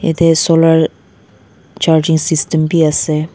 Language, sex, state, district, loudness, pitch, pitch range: Nagamese, female, Nagaland, Dimapur, -12 LUFS, 160 Hz, 150-165 Hz